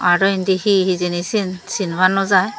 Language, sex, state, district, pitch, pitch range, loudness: Chakma, female, Tripura, Dhalai, 190 Hz, 180-195 Hz, -17 LUFS